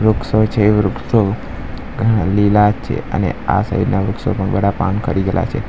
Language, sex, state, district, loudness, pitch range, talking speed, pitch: Gujarati, male, Gujarat, Valsad, -16 LUFS, 100-110 Hz, 190 wpm, 105 Hz